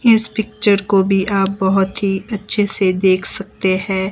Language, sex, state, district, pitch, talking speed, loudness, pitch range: Hindi, female, Himachal Pradesh, Shimla, 195 Hz, 175 wpm, -15 LUFS, 190-205 Hz